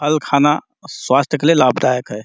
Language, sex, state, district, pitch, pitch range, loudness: Hindi, male, Chhattisgarh, Bastar, 150 Hz, 130-155 Hz, -15 LUFS